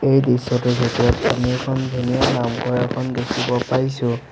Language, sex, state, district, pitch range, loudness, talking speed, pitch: Assamese, male, Assam, Sonitpur, 120-130 Hz, -20 LUFS, 140 wpm, 125 Hz